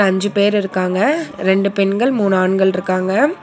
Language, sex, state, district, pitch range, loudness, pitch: Tamil, female, Tamil Nadu, Nilgiris, 190-205 Hz, -16 LUFS, 195 Hz